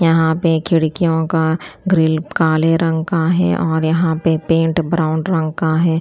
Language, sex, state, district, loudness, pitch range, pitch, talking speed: Hindi, female, Punjab, Kapurthala, -16 LUFS, 160-165 Hz, 160 Hz, 170 wpm